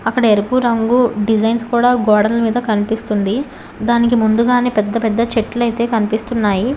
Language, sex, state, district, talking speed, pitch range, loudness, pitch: Telugu, female, Telangana, Hyderabad, 125 wpm, 215-240 Hz, -15 LUFS, 230 Hz